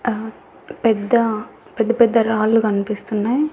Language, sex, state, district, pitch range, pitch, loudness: Telugu, female, Andhra Pradesh, Annamaya, 215-235 Hz, 225 Hz, -18 LUFS